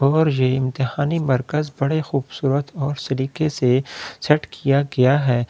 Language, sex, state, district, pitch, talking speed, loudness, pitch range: Hindi, male, Delhi, New Delhi, 140 Hz, 140 wpm, -20 LUFS, 130-150 Hz